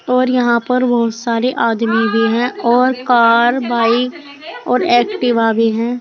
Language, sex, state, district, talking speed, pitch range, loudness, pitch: Hindi, female, Uttar Pradesh, Saharanpur, 150 wpm, 230-250 Hz, -14 LUFS, 240 Hz